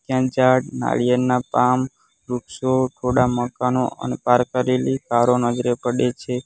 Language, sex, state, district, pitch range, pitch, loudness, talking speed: Gujarati, male, Gujarat, Valsad, 120-130 Hz, 125 Hz, -20 LUFS, 130 wpm